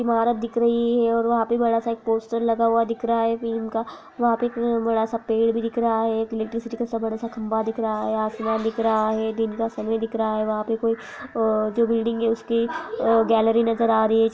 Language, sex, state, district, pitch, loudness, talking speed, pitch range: Hindi, female, Bihar, Jahanabad, 230 Hz, -23 LUFS, 260 wpm, 225-230 Hz